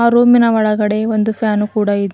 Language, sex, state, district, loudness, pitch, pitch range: Kannada, female, Karnataka, Bidar, -14 LUFS, 215 Hz, 210-230 Hz